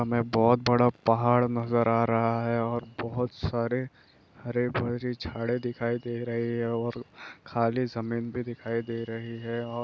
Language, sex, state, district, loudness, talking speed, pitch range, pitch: Hindi, male, Bihar, East Champaran, -28 LUFS, 150 wpm, 115-120 Hz, 120 Hz